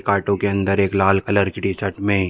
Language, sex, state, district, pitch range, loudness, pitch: Hindi, male, Chhattisgarh, Bilaspur, 95-100 Hz, -19 LUFS, 100 Hz